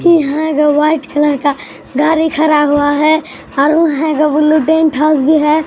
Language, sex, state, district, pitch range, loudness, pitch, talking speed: Hindi, male, Bihar, Katihar, 295-315 Hz, -12 LUFS, 305 Hz, 180 wpm